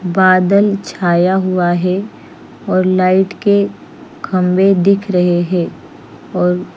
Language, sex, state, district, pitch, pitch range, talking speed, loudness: Hindi, female, Chandigarh, Chandigarh, 185 Hz, 180-195 Hz, 105 wpm, -14 LUFS